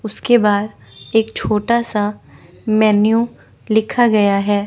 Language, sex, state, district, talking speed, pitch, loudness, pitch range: Hindi, female, Chandigarh, Chandigarh, 115 wpm, 215 Hz, -16 LUFS, 205-225 Hz